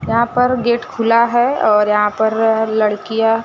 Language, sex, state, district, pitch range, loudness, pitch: Hindi, male, Maharashtra, Gondia, 220-235 Hz, -15 LUFS, 225 Hz